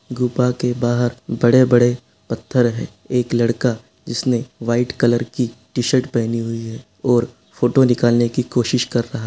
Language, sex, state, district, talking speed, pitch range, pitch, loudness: Hindi, male, Bihar, Sitamarhi, 155 wpm, 115-125 Hz, 120 Hz, -18 LUFS